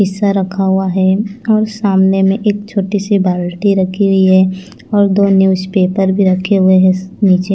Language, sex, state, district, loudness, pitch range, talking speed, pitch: Hindi, female, Chandigarh, Chandigarh, -12 LUFS, 190-200 Hz, 175 wpm, 195 Hz